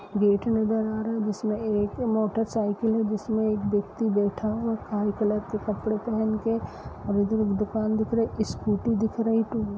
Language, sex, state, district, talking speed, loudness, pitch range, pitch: Hindi, female, Uttar Pradesh, Budaun, 210 wpm, -26 LUFS, 210-225 Hz, 215 Hz